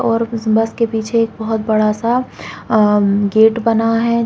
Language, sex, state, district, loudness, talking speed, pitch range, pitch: Hindi, female, Uttarakhand, Uttarkashi, -15 LUFS, 185 wpm, 220-230 Hz, 225 Hz